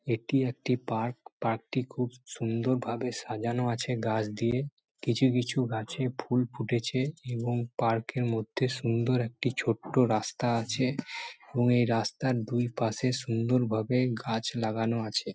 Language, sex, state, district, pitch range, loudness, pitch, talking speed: Bengali, male, West Bengal, Malda, 115-125 Hz, -30 LUFS, 120 Hz, 135 wpm